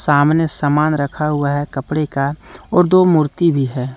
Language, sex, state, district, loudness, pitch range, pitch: Hindi, male, Jharkhand, Deoghar, -16 LUFS, 140-155 Hz, 150 Hz